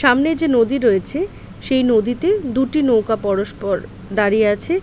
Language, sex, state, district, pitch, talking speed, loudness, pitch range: Bengali, female, West Bengal, Paschim Medinipur, 245 Hz, 135 wpm, -18 LUFS, 215-290 Hz